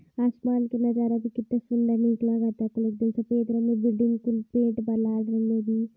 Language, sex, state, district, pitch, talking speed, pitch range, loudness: Hindi, female, Uttar Pradesh, Varanasi, 230 Hz, 120 wpm, 225-235 Hz, -26 LUFS